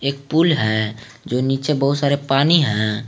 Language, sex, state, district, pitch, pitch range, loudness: Hindi, male, Jharkhand, Garhwa, 135 Hz, 115-145 Hz, -18 LUFS